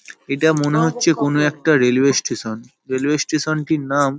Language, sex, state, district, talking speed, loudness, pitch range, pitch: Bengali, male, West Bengal, Paschim Medinipur, 185 wpm, -18 LUFS, 135-155 Hz, 145 Hz